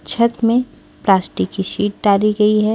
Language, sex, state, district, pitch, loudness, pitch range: Hindi, female, Maharashtra, Washim, 210 Hz, -17 LUFS, 200-230 Hz